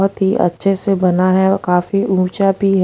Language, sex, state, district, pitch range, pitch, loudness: Hindi, female, Haryana, Rohtak, 185-195 Hz, 190 Hz, -15 LUFS